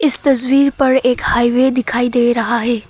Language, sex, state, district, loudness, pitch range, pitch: Hindi, female, Assam, Kamrup Metropolitan, -14 LUFS, 240-270 Hz, 250 Hz